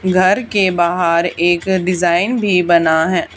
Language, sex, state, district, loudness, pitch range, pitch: Hindi, female, Haryana, Charkhi Dadri, -14 LUFS, 170-190 Hz, 180 Hz